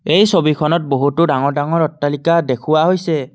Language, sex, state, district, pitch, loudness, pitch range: Assamese, male, Assam, Kamrup Metropolitan, 155 Hz, -15 LUFS, 145-170 Hz